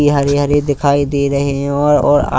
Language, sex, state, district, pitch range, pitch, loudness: Hindi, male, Punjab, Kapurthala, 140-145 Hz, 145 Hz, -14 LUFS